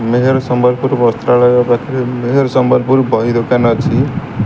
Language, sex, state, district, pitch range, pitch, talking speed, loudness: Odia, male, Odisha, Sambalpur, 120-130 Hz, 125 Hz, 120 wpm, -12 LUFS